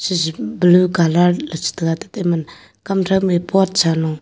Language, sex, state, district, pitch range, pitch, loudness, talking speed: Wancho, female, Arunachal Pradesh, Longding, 165-190 Hz, 175 Hz, -17 LUFS, 155 wpm